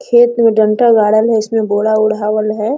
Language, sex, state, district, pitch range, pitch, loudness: Hindi, female, Jharkhand, Sahebganj, 215-230 Hz, 215 Hz, -12 LUFS